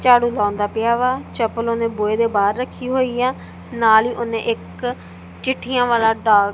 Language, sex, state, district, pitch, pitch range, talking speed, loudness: Punjabi, female, Punjab, Kapurthala, 230 Hz, 210-245 Hz, 175 wpm, -19 LUFS